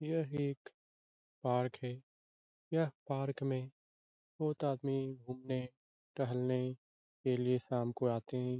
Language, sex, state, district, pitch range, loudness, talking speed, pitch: Hindi, male, Bihar, Lakhisarai, 115-135 Hz, -38 LUFS, 125 wpm, 125 Hz